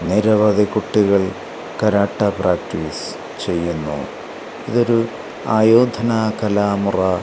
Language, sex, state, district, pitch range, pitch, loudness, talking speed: Malayalam, male, Kerala, Kasaragod, 95-110 Hz, 105 Hz, -18 LUFS, 65 wpm